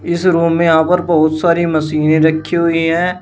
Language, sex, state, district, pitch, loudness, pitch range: Hindi, male, Uttar Pradesh, Shamli, 165 Hz, -13 LUFS, 160-170 Hz